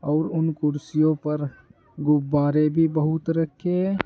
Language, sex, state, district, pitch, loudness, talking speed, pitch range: Hindi, male, Uttar Pradesh, Saharanpur, 155 Hz, -23 LUFS, 135 wpm, 150-165 Hz